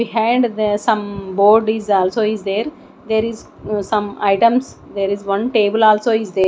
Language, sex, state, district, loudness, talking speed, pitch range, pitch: English, female, Odisha, Nuapada, -17 LUFS, 175 wpm, 200-225 Hz, 215 Hz